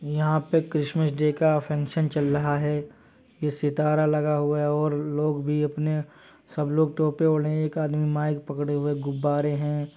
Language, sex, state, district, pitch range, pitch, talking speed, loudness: Hindi, male, Uttar Pradesh, Jyotiba Phule Nagar, 145-155 Hz, 150 Hz, 185 wpm, -25 LUFS